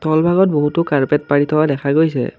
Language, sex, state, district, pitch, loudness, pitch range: Assamese, male, Assam, Kamrup Metropolitan, 150 Hz, -16 LUFS, 145-160 Hz